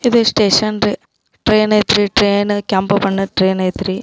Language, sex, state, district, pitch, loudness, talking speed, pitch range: Kannada, female, Karnataka, Belgaum, 205 Hz, -14 LUFS, 180 wpm, 195-215 Hz